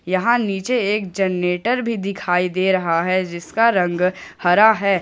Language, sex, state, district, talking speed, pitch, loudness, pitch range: Hindi, male, Jharkhand, Ranchi, 155 wpm, 190 Hz, -19 LUFS, 180-215 Hz